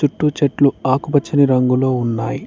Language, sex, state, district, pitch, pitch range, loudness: Telugu, male, Telangana, Mahabubabad, 135 Hz, 125-145 Hz, -16 LUFS